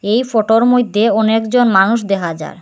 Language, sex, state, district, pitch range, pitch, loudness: Bengali, female, Assam, Hailakandi, 200-230 Hz, 220 Hz, -13 LUFS